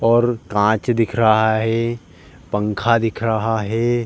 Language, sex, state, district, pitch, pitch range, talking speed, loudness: Hindi, male, Uttar Pradesh, Jalaun, 115 Hz, 110-115 Hz, 135 wpm, -18 LUFS